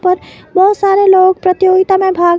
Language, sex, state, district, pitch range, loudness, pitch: Hindi, female, Himachal Pradesh, Shimla, 370-385 Hz, -10 LUFS, 375 Hz